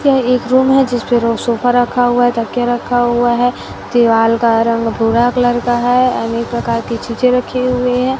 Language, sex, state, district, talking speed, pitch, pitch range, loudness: Hindi, female, Chhattisgarh, Raipur, 205 wpm, 245 Hz, 235-250 Hz, -14 LUFS